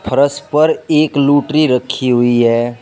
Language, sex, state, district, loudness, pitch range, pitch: Hindi, male, Uttar Pradesh, Shamli, -13 LUFS, 120-150 Hz, 140 Hz